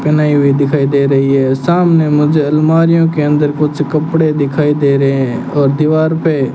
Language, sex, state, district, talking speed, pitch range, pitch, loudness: Hindi, male, Rajasthan, Bikaner, 190 wpm, 140-155 Hz, 150 Hz, -12 LUFS